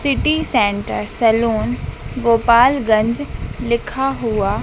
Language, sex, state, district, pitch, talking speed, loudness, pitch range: Hindi, female, Madhya Pradesh, Dhar, 235 Hz, 90 wpm, -17 LUFS, 220-265 Hz